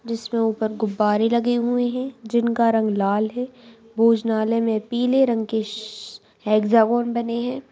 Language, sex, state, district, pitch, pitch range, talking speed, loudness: Hindi, female, Bihar, Purnia, 230 Hz, 220-235 Hz, 140 wpm, -21 LUFS